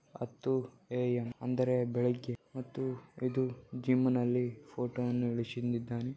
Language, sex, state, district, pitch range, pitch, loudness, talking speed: Kannada, male, Karnataka, Bellary, 120-130 Hz, 125 Hz, -34 LUFS, 85 wpm